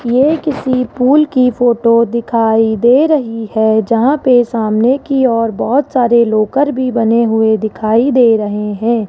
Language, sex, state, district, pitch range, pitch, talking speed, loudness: Hindi, female, Rajasthan, Jaipur, 225-260 Hz, 235 Hz, 160 wpm, -12 LUFS